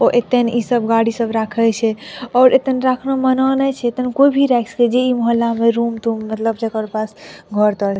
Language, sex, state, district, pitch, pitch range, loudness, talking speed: Maithili, female, Bihar, Madhepura, 235 Hz, 225-255 Hz, -16 LUFS, 235 wpm